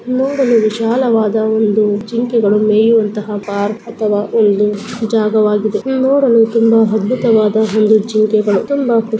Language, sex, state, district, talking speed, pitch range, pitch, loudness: Kannada, female, Karnataka, Bellary, 100 wpm, 210-230 Hz, 220 Hz, -13 LUFS